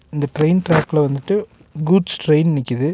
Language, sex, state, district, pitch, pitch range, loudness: Tamil, male, Tamil Nadu, Nilgiris, 155 Hz, 145-170 Hz, -17 LUFS